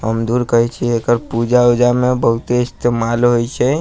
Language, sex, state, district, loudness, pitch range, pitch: Maithili, male, Bihar, Sitamarhi, -15 LUFS, 115-125 Hz, 120 Hz